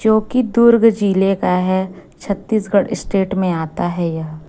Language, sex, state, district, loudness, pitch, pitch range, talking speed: Hindi, female, Chhattisgarh, Raipur, -16 LUFS, 195 Hz, 180-220 Hz, 145 wpm